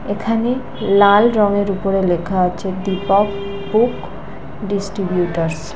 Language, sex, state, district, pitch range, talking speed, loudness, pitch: Bengali, female, West Bengal, North 24 Parganas, 190-210 Hz, 105 wpm, -17 LUFS, 200 Hz